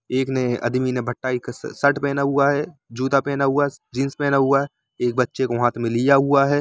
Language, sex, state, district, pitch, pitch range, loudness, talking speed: Hindi, male, Jharkhand, Jamtara, 135 Hz, 125-140 Hz, -21 LUFS, 220 wpm